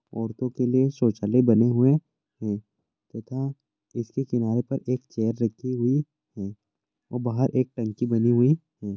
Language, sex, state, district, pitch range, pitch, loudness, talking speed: Hindi, male, Uttarakhand, Tehri Garhwal, 115-135 Hz, 120 Hz, -25 LUFS, 155 wpm